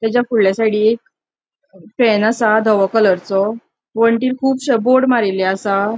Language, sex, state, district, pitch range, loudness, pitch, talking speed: Konkani, female, Goa, North and South Goa, 205-240 Hz, -15 LUFS, 220 Hz, 120 wpm